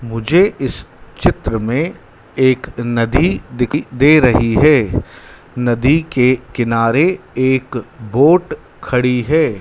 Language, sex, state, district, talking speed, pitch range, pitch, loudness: Hindi, male, Madhya Pradesh, Dhar, 105 wpm, 115-150 Hz, 125 Hz, -15 LUFS